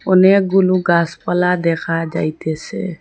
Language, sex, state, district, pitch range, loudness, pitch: Bengali, female, Assam, Hailakandi, 165-185 Hz, -16 LUFS, 175 Hz